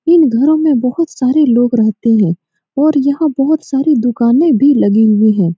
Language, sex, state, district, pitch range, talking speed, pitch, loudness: Hindi, female, Bihar, Saran, 220-300 Hz, 195 wpm, 270 Hz, -12 LUFS